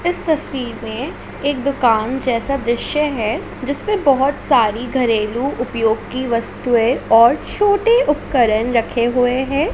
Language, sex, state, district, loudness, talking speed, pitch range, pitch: Hindi, female, Chhattisgarh, Raipur, -17 LUFS, 135 wpm, 230-285 Hz, 255 Hz